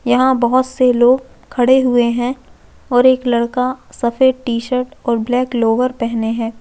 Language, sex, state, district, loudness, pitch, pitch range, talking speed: Hindi, female, Chhattisgarh, Jashpur, -15 LUFS, 250 Hz, 235-255 Hz, 175 wpm